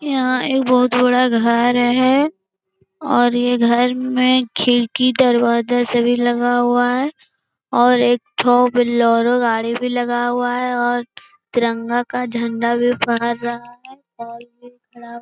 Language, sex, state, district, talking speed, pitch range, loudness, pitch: Hindi, female, Bihar, Jamui, 135 wpm, 235-250 Hz, -16 LUFS, 245 Hz